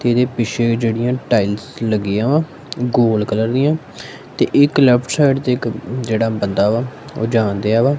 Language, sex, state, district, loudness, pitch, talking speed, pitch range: Punjabi, male, Punjab, Kapurthala, -17 LUFS, 120 Hz, 175 wpm, 110-130 Hz